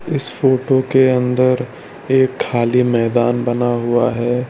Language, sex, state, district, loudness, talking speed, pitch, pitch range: Hindi, male, Gujarat, Valsad, -16 LUFS, 135 wpm, 125 Hz, 120-130 Hz